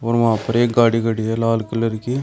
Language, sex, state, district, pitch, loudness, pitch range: Hindi, male, Uttar Pradesh, Shamli, 115 Hz, -18 LUFS, 115-120 Hz